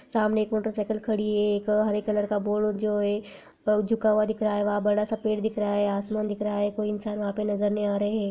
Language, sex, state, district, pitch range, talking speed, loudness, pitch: Hindi, female, Rajasthan, Nagaur, 205-215 Hz, 275 wpm, -26 LUFS, 210 Hz